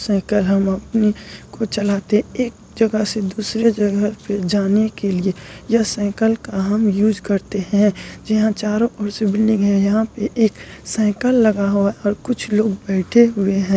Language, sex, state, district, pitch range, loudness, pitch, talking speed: Hindi, male, Bihar, Bhagalpur, 200-220 Hz, -18 LUFS, 210 Hz, 175 wpm